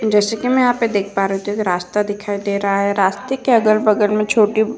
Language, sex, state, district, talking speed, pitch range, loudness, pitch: Hindi, female, Uttar Pradesh, Hamirpur, 300 wpm, 200-220 Hz, -17 LUFS, 210 Hz